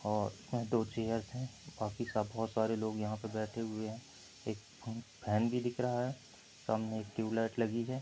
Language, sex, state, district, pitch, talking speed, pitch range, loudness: Hindi, male, Andhra Pradesh, Anantapur, 110 Hz, 195 wpm, 110-115 Hz, -38 LUFS